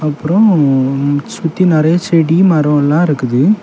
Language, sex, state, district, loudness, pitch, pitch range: Tamil, male, Tamil Nadu, Kanyakumari, -12 LUFS, 155 Hz, 145-175 Hz